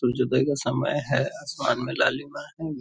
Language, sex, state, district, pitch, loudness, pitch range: Hindi, male, Bihar, Purnia, 140 Hz, -26 LUFS, 125-145 Hz